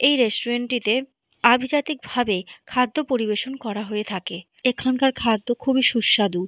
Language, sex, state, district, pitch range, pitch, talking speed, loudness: Bengali, female, Jharkhand, Jamtara, 210-260 Hz, 240 Hz, 120 wpm, -22 LUFS